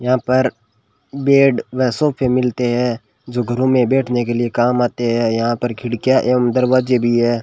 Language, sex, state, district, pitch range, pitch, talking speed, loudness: Hindi, male, Rajasthan, Bikaner, 120-130 Hz, 125 Hz, 185 wpm, -17 LUFS